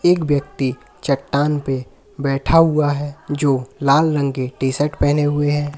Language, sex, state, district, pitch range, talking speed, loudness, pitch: Hindi, male, Uttar Pradesh, Lalitpur, 135-150 Hz, 155 wpm, -19 LUFS, 145 Hz